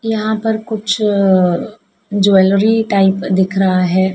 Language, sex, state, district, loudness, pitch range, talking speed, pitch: Hindi, female, Madhya Pradesh, Dhar, -14 LUFS, 190-215 Hz, 130 wpm, 200 Hz